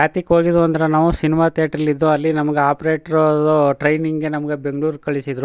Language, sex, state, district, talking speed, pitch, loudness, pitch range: Kannada, male, Karnataka, Chamarajanagar, 210 wpm, 155 Hz, -17 LUFS, 150-160 Hz